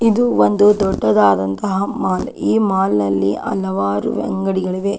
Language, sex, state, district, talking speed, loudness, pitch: Kannada, female, Karnataka, Dakshina Kannada, 110 wpm, -17 LUFS, 185 Hz